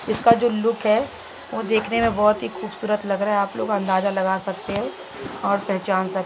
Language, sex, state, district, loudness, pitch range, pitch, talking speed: Hindi, female, Uttar Pradesh, Muzaffarnagar, -22 LUFS, 195-220 Hz, 210 Hz, 210 wpm